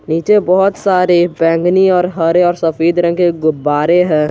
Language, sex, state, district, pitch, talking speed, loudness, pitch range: Hindi, male, Jharkhand, Garhwa, 175 Hz, 165 wpm, -12 LUFS, 165-180 Hz